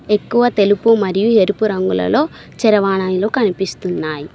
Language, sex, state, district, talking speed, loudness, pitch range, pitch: Telugu, female, Telangana, Mahabubabad, 95 wpm, -15 LUFS, 185-220 Hz, 200 Hz